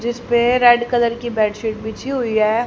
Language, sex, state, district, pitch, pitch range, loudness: Hindi, female, Haryana, Charkhi Dadri, 235 Hz, 220-240 Hz, -17 LUFS